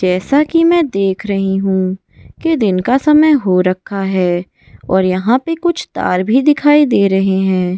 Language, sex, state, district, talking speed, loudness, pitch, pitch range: Hindi, female, Goa, North and South Goa, 175 wpm, -13 LUFS, 195 Hz, 185-295 Hz